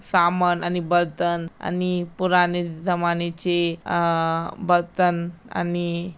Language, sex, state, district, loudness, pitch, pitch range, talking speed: Marathi, female, Maharashtra, Chandrapur, -23 LUFS, 175 Hz, 170-180 Hz, 95 wpm